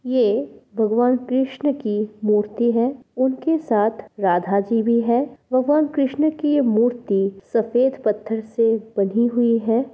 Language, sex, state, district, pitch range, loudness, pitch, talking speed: Hindi, female, Bihar, Kishanganj, 215-260 Hz, -20 LUFS, 235 Hz, 140 wpm